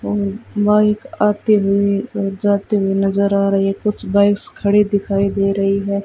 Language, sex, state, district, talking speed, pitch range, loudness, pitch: Hindi, female, Rajasthan, Bikaner, 170 wpm, 195-210 Hz, -17 LUFS, 200 Hz